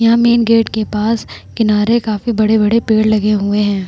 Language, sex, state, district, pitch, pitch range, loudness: Hindi, female, Bihar, Vaishali, 220 Hz, 210-230 Hz, -14 LUFS